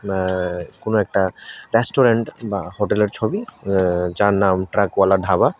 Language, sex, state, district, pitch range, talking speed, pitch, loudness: Bengali, male, Tripura, West Tripura, 95-105 Hz, 130 wpm, 100 Hz, -19 LUFS